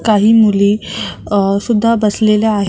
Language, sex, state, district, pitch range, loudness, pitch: Marathi, female, Maharashtra, Mumbai Suburban, 200-220 Hz, -13 LUFS, 210 Hz